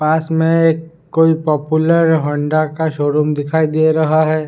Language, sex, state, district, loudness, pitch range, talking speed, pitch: Hindi, male, Bihar, Sitamarhi, -15 LUFS, 155-160 Hz, 160 wpm, 155 Hz